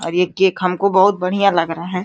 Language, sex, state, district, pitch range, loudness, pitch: Hindi, female, Uttar Pradesh, Deoria, 180-190 Hz, -16 LUFS, 185 Hz